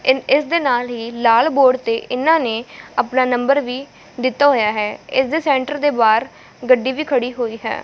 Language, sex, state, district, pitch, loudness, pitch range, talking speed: Punjabi, female, Punjab, Fazilka, 255 Hz, -17 LUFS, 235-280 Hz, 190 wpm